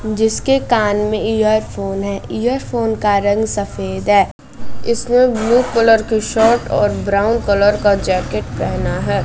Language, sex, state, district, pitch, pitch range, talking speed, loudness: Hindi, female, Bihar, West Champaran, 215 Hz, 200-230 Hz, 145 wpm, -16 LUFS